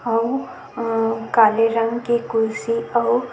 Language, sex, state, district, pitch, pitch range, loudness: Chhattisgarhi, female, Chhattisgarh, Sukma, 230 Hz, 225-235 Hz, -20 LUFS